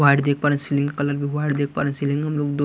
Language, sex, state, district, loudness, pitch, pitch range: Hindi, male, Chhattisgarh, Raipur, -22 LUFS, 145 Hz, 140-145 Hz